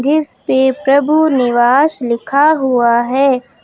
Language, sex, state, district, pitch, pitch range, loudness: Hindi, female, Uttar Pradesh, Lucknow, 265 Hz, 245-290 Hz, -13 LUFS